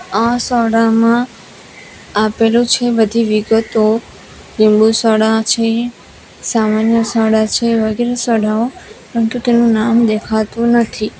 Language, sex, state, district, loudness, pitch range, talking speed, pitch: Gujarati, female, Gujarat, Valsad, -14 LUFS, 220-235 Hz, 115 wpm, 225 Hz